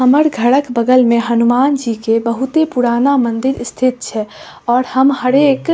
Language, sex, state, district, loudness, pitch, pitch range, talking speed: Maithili, female, Bihar, Saharsa, -14 LUFS, 250 Hz, 235-270 Hz, 175 wpm